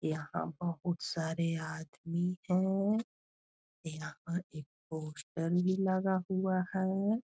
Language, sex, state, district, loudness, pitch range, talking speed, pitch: Hindi, female, Bihar, Gaya, -35 LUFS, 160-190 Hz, 100 wpm, 175 Hz